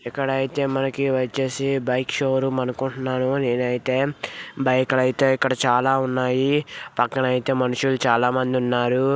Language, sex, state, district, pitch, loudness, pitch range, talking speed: Telugu, male, Andhra Pradesh, Visakhapatnam, 130 Hz, -22 LUFS, 125-135 Hz, 130 wpm